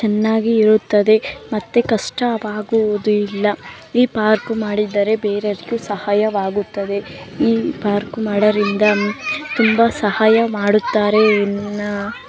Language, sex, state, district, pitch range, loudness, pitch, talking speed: Kannada, female, Karnataka, Mysore, 205-220 Hz, -17 LUFS, 210 Hz, 80 wpm